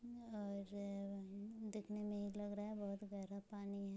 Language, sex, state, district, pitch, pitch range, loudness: Hindi, female, Bihar, Muzaffarpur, 205 Hz, 200-210 Hz, -48 LUFS